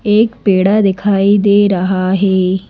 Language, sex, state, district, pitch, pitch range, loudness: Hindi, female, Madhya Pradesh, Bhopal, 195 Hz, 190-205 Hz, -12 LUFS